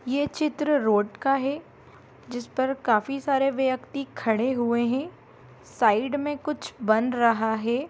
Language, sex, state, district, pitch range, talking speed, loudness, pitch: Bhojpuri, female, Bihar, Saran, 230-280 Hz, 145 wpm, -25 LUFS, 260 Hz